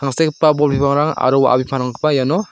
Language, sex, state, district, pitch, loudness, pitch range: Garo, male, Meghalaya, South Garo Hills, 140 Hz, -15 LUFS, 130-155 Hz